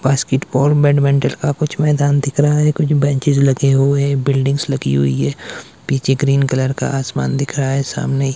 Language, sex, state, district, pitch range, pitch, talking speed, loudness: Hindi, male, Himachal Pradesh, Shimla, 135-145 Hz, 140 Hz, 200 wpm, -16 LUFS